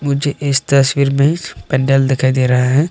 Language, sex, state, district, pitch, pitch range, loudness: Hindi, male, Arunachal Pradesh, Longding, 140 Hz, 135-140 Hz, -14 LUFS